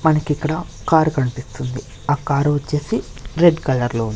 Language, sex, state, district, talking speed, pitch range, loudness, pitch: Telugu, male, Andhra Pradesh, Sri Satya Sai, 130 wpm, 125-155 Hz, -19 LUFS, 145 Hz